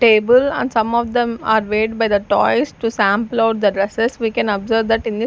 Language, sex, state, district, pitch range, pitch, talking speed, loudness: English, female, Chandigarh, Chandigarh, 210-230 Hz, 225 Hz, 250 wpm, -17 LUFS